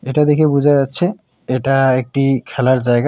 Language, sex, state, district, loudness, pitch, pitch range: Bengali, male, West Bengal, Alipurduar, -15 LUFS, 135 Hz, 130-150 Hz